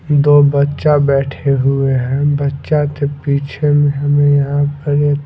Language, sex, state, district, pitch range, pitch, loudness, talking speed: Hindi, male, Himachal Pradesh, Shimla, 140-145 Hz, 145 Hz, -14 LUFS, 150 wpm